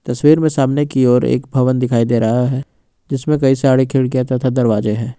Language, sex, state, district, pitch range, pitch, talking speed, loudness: Hindi, male, Jharkhand, Ranchi, 125-135 Hz, 130 Hz, 210 wpm, -15 LUFS